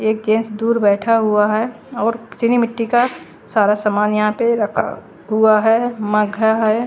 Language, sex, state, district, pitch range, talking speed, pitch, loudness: Hindi, female, Haryana, Charkhi Dadri, 210-230 Hz, 175 wpm, 220 Hz, -17 LUFS